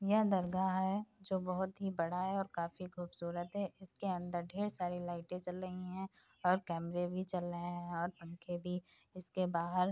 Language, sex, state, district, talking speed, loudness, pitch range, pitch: Hindi, female, Uttar Pradesh, Hamirpur, 180 wpm, -39 LUFS, 175-190 Hz, 180 Hz